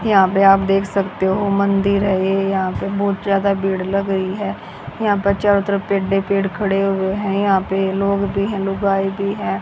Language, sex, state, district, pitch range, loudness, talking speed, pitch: Hindi, female, Haryana, Jhajjar, 195-200 Hz, -18 LUFS, 210 wpm, 195 Hz